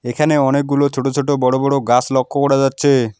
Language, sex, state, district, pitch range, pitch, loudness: Bengali, male, West Bengal, Alipurduar, 130-140 Hz, 135 Hz, -16 LUFS